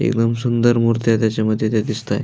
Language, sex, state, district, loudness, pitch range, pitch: Marathi, male, Maharashtra, Aurangabad, -18 LUFS, 110-120 Hz, 115 Hz